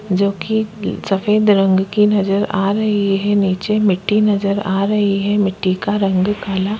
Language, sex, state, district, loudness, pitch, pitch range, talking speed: Hindi, female, Chhattisgarh, Korba, -16 LUFS, 200 Hz, 195-210 Hz, 170 wpm